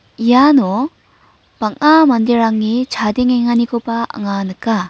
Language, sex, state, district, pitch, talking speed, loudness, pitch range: Garo, female, Meghalaya, North Garo Hills, 235 Hz, 75 wpm, -14 LUFS, 220-250 Hz